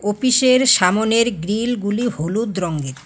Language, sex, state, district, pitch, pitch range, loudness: Bengali, female, West Bengal, Alipurduar, 215 Hz, 180-240 Hz, -17 LUFS